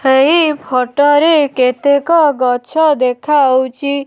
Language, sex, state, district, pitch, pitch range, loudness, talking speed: Odia, female, Odisha, Nuapada, 280 Hz, 260-300 Hz, -12 LUFS, 90 wpm